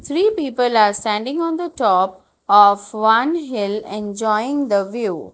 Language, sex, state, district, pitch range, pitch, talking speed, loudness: English, female, Gujarat, Valsad, 205-285 Hz, 220 Hz, 145 wpm, -18 LUFS